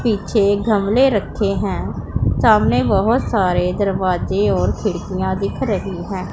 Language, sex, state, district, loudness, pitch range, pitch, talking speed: Hindi, female, Punjab, Pathankot, -18 LUFS, 185-215 Hz, 200 Hz, 125 wpm